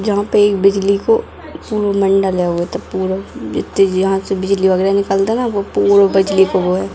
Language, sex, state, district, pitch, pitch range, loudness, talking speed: Hindi, female, Bihar, Darbhanga, 195 Hz, 190-200 Hz, -15 LUFS, 215 wpm